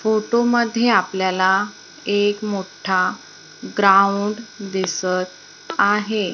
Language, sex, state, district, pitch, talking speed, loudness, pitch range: Marathi, female, Maharashtra, Gondia, 205 Hz, 75 wpm, -19 LUFS, 190-230 Hz